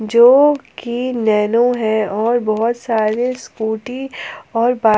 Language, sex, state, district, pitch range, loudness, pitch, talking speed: Hindi, female, Jharkhand, Palamu, 220-250 Hz, -16 LUFS, 235 Hz, 110 wpm